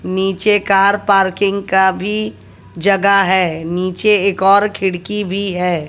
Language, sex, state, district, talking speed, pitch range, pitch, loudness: Hindi, female, Haryana, Jhajjar, 130 wpm, 185-200 Hz, 195 Hz, -14 LUFS